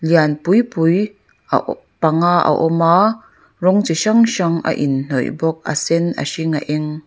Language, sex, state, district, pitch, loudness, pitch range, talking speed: Mizo, female, Mizoram, Aizawl, 165 Hz, -16 LUFS, 155-180 Hz, 195 wpm